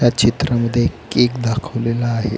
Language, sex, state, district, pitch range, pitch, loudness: Marathi, male, Maharashtra, Pune, 115-120 Hz, 120 Hz, -18 LUFS